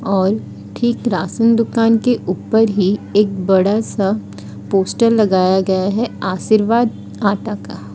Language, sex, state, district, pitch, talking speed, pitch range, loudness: Hindi, female, Odisha, Sambalpur, 200 Hz, 130 wpm, 190-225 Hz, -16 LUFS